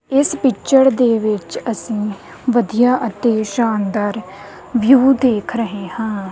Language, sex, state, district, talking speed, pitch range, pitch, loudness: Punjabi, female, Punjab, Kapurthala, 115 wpm, 210-250 Hz, 230 Hz, -16 LUFS